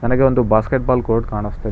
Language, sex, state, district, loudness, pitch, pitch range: Kannada, male, Karnataka, Bangalore, -17 LUFS, 115 Hz, 110-125 Hz